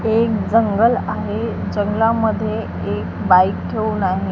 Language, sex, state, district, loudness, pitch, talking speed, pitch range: Marathi, female, Maharashtra, Gondia, -18 LUFS, 215 Hz, 110 wpm, 185-225 Hz